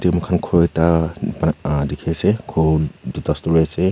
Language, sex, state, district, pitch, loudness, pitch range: Nagamese, male, Nagaland, Kohima, 80 Hz, -19 LUFS, 80-90 Hz